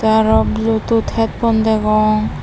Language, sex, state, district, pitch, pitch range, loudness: Chakma, female, Tripura, Dhalai, 220 Hz, 215-225 Hz, -15 LUFS